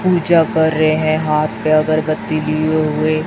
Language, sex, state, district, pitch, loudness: Hindi, female, Chhattisgarh, Raipur, 155 Hz, -15 LUFS